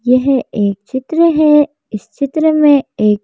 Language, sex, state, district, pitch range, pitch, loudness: Hindi, female, Madhya Pradesh, Bhopal, 230-300 Hz, 275 Hz, -13 LUFS